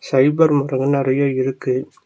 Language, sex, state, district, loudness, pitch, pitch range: Tamil, male, Tamil Nadu, Nilgiris, -18 LUFS, 135 Hz, 130-140 Hz